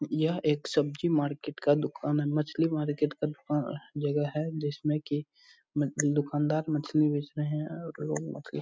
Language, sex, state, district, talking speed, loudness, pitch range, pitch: Hindi, male, Bihar, Purnia, 165 wpm, -30 LUFS, 145-155 Hz, 150 Hz